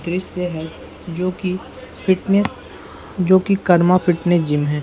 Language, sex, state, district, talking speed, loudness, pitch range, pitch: Hindi, male, Bihar, Saran, 135 wpm, -18 LUFS, 170-185 Hz, 180 Hz